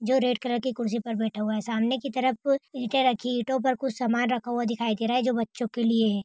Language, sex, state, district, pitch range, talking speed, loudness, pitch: Hindi, female, Jharkhand, Jamtara, 230-255 Hz, 280 wpm, -27 LUFS, 240 Hz